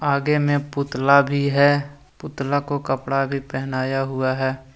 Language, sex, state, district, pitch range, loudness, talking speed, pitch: Hindi, male, Jharkhand, Deoghar, 135-145 Hz, -21 LUFS, 150 wpm, 140 Hz